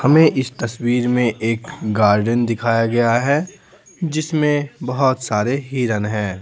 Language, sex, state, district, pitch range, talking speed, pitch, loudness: Hindi, male, Bihar, Patna, 115-145 Hz, 130 wpm, 125 Hz, -18 LUFS